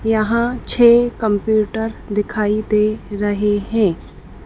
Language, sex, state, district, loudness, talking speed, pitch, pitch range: Hindi, female, Madhya Pradesh, Dhar, -17 LUFS, 95 wpm, 215 Hz, 210-225 Hz